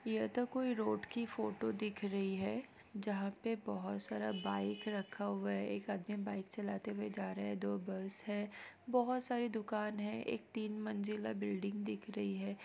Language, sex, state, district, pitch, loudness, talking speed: Hindi, female, Bihar, East Champaran, 205 Hz, -41 LUFS, 185 wpm